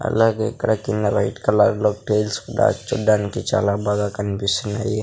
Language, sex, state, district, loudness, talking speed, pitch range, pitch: Telugu, male, Andhra Pradesh, Sri Satya Sai, -20 LUFS, 145 wpm, 105-110 Hz, 105 Hz